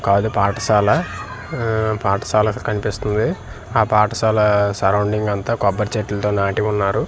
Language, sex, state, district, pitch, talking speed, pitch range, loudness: Telugu, male, Andhra Pradesh, Manyam, 105 Hz, 110 wpm, 100-110 Hz, -18 LUFS